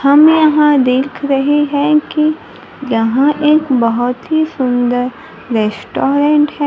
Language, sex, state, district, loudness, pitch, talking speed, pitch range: Hindi, female, Maharashtra, Gondia, -13 LUFS, 285 Hz, 115 wpm, 250-300 Hz